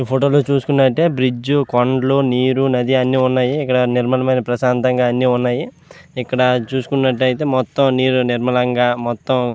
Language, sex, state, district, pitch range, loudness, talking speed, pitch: Telugu, male, Andhra Pradesh, Visakhapatnam, 125-135 Hz, -16 LUFS, 145 wpm, 130 Hz